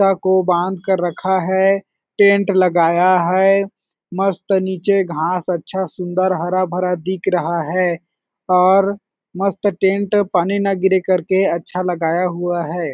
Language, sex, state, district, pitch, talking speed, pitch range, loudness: Hindi, male, Chhattisgarh, Balrampur, 185 Hz, 130 wpm, 180-195 Hz, -17 LUFS